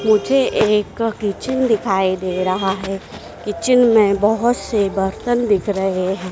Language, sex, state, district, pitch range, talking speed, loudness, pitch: Hindi, female, Madhya Pradesh, Dhar, 190-230 Hz, 140 wpm, -17 LUFS, 210 Hz